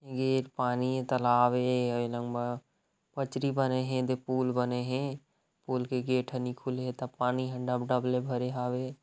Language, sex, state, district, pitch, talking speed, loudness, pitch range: Chhattisgarhi, male, Chhattisgarh, Rajnandgaon, 125 Hz, 160 wpm, -31 LUFS, 125-130 Hz